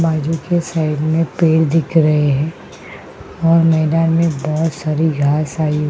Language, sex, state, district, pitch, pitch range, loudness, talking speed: Hindi, female, Uttarakhand, Tehri Garhwal, 160 Hz, 155-165 Hz, -16 LUFS, 165 wpm